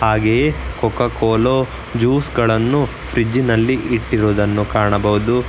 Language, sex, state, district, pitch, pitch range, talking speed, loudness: Kannada, male, Karnataka, Bangalore, 115 Hz, 110-125 Hz, 100 wpm, -17 LUFS